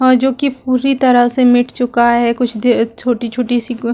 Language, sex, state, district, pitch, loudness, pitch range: Hindi, female, Chhattisgarh, Balrampur, 245 Hz, -14 LUFS, 235-255 Hz